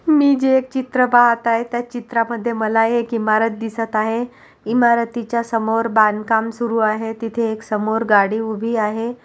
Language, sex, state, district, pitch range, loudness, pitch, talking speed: Marathi, female, Maharashtra, Pune, 220-240 Hz, -18 LUFS, 230 Hz, 155 wpm